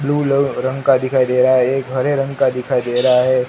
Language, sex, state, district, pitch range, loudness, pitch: Hindi, male, Gujarat, Gandhinagar, 125-135 Hz, -16 LUFS, 130 Hz